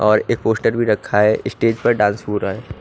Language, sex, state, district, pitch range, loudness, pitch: Hindi, male, Haryana, Rohtak, 105-115 Hz, -18 LUFS, 105 Hz